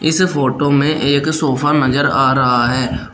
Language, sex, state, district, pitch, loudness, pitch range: Hindi, male, Uttar Pradesh, Shamli, 140 Hz, -14 LUFS, 130-150 Hz